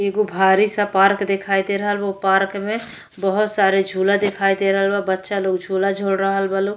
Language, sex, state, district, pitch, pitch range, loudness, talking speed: Bhojpuri, female, Uttar Pradesh, Gorakhpur, 195 Hz, 195-200 Hz, -19 LUFS, 220 wpm